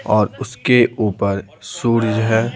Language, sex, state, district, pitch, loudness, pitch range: Hindi, male, Bihar, Patna, 115 Hz, -17 LUFS, 105-120 Hz